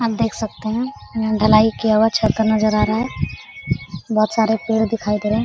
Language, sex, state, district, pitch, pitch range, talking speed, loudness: Hindi, female, Jharkhand, Sahebganj, 220 Hz, 215-225 Hz, 230 wpm, -19 LUFS